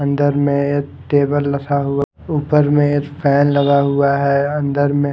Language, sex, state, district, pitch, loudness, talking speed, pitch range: Hindi, male, Haryana, Rohtak, 140 Hz, -16 LUFS, 165 wpm, 140-145 Hz